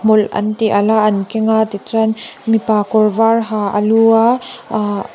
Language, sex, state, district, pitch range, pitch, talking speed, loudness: Mizo, female, Mizoram, Aizawl, 210-225 Hz, 220 Hz, 200 wpm, -14 LUFS